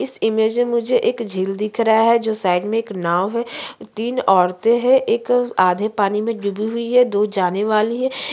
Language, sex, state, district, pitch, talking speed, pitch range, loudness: Hindi, female, Uttarakhand, Tehri Garhwal, 220 Hz, 230 wpm, 200-235 Hz, -18 LUFS